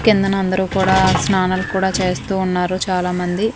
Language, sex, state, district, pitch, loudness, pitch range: Telugu, female, Andhra Pradesh, Manyam, 190 Hz, -17 LUFS, 185-195 Hz